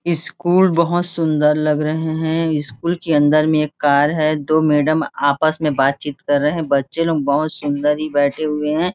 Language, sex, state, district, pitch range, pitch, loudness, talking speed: Hindi, female, Chhattisgarh, Raigarh, 145-160 Hz, 155 Hz, -17 LUFS, 200 wpm